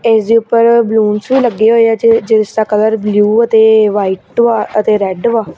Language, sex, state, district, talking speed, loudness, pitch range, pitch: Punjabi, female, Punjab, Kapurthala, 205 wpm, -11 LUFS, 210-230 Hz, 220 Hz